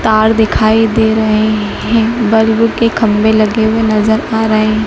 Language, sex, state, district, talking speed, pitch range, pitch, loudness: Hindi, female, Madhya Pradesh, Dhar, 160 wpm, 215-225 Hz, 220 Hz, -11 LUFS